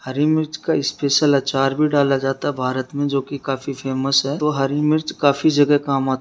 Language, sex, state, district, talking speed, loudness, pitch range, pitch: Hindi, male, Bihar, Darbhanga, 230 wpm, -19 LUFS, 135-150 Hz, 140 Hz